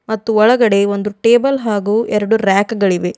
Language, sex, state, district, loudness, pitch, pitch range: Kannada, female, Karnataka, Bidar, -14 LUFS, 215 Hz, 200-225 Hz